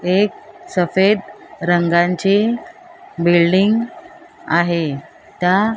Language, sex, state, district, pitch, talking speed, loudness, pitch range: Marathi, female, Maharashtra, Mumbai Suburban, 190 Hz, 75 wpm, -17 LUFS, 175-225 Hz